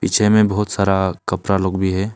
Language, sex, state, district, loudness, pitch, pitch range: Hindi, male, Arunachal Pradesh, Longding, -17 LUFS, 95 Hz, 95-105 Hz